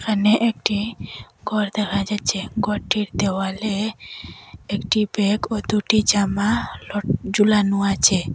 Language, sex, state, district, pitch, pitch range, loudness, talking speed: Bengali, female, Assam, Hailakandi, 210 Hz, 200-215 Hz, -21 LUFS, 110 wpm